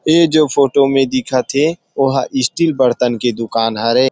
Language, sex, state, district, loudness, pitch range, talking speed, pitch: Chhattisgarhi, male, Chhattisgarh, Rajnandgaon, -15 LUFS, 125-150 Hz, 160 wpm, 135 Hz